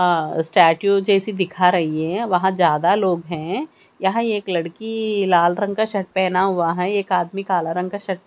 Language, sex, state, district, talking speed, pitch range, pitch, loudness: Hindi, female, Haryana, Charkhi Dadri, 190 wpm, 175-200 Hz, 185 Hz, -19 LUFS